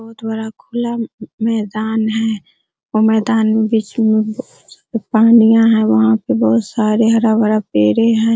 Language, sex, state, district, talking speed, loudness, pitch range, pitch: Hindi, female, Bihar, Araria, 150 wpm, -15 LUFS, 215-225 Hz, 220 Hz